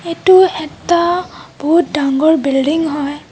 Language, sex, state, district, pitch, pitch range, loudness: Assamese, female, Assam, Kamrup Metropolitan, 320 Hz, 290-345 Hz, -14 LUFS